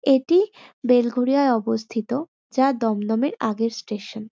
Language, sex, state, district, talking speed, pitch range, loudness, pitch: Bengali, female, West Bengal, North 24 Parganas, 110 wpm, 225-270 Hz, -22 LUFS, 240 Hz